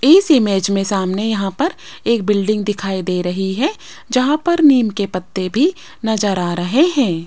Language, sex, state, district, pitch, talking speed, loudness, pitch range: Hindi, female, Rajasthan, Jaipur, 210 Hz, 180 wpm, -17 LUFS, 190-275 Hz